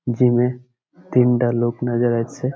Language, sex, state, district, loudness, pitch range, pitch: Bengali, male, West Bengal, Malda, -19 LUFS, 120-125 Hz, 125 Hz